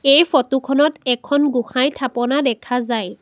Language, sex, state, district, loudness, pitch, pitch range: Assamese, female, Assam, Sonitpur, -18 LUFS, 265 Hz, 245-285 Hz